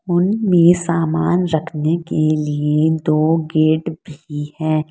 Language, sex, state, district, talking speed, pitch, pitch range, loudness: Hindi, female, Uttar Pradesh, Saharanpur, 120 wpm, 160 Hz, 155-170 Hz, -17 LUFS